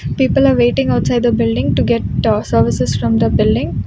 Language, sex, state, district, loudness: English, female, Karnataka, Bangalore, -14 LUFS